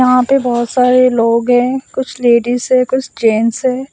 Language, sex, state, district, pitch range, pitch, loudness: Hindi, male, Assam, Sonitpur, 240-255 Hz, 250 Hz, -13 LUFS